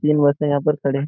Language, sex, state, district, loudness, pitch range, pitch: Hindi, male, Jharkhand, Jamtara, -19 LUFS, 140-150 Hz, 145 Hz